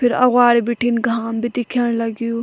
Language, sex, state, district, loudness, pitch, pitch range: Garhwali, female, Uttarakhand, Tehri Garhwal, -17 LUFS, 235 Hz, 230-245 Hz